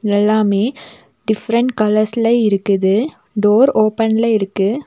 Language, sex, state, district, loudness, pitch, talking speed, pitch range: Tamil, female, Tamil Nadu, Nilgiris, -15 LUFS, 215 Hz, 85 wpm, 205-230 Hz